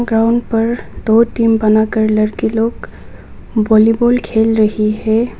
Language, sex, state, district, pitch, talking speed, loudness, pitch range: Hindi, female, Nagaland, Kohima, 225 Hz, 120 wpm, -14 LUFS, 215-230 Hz